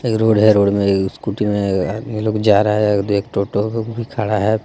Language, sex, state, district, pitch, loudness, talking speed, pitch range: Hindi, male, Jharkhand, Deoghar, 105 Hz, -17 LUFS, 220 wpm, 100-110 Hz